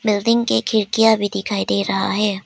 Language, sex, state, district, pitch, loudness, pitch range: Hindi, female, Arunachal Pradesh, Papum Pare, 205 Hz, -18 LUFS, 190-220 Hz